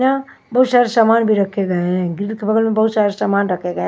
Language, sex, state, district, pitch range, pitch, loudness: Hindi, female, Himachal Pradesh, Shimla, 195-230 Hz, 210 Hz, -16 LUFS